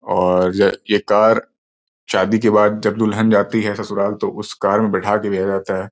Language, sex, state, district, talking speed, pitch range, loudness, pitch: Hindi, male, Uttar Pradesh, Gorakhpur, 205 wpm, 95-105 Hz, -17 LUFS, 105 Hz